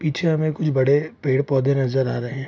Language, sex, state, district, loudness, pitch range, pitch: Hindi, male, Bihar, Supaul, -21 LUFS, 135-155 Hz, 135 Hz